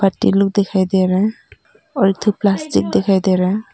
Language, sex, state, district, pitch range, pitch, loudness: Hindi, female, Arunachal Pradesh, Papum Pare, 185-200 Hz, 195 Hz, -16 LUFS